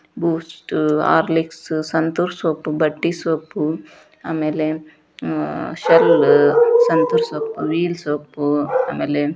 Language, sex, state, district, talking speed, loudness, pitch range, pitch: Kannada, female, Karnataka, Dharwad, 90 wpm, -18 LUFS, 155-175 Hz, 160 Hz